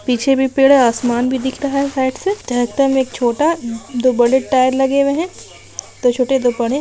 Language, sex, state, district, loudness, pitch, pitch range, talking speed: Hindi, female, Bihar, Kishanganj, -16 LUFS, 260 Hz, 245-275 Hz, 220 wpm